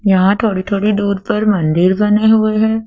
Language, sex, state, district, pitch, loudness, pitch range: Hindi, female, Madhya Pradesh, Dhar, 210 Hz, -14 LUFS, 195-215 Hz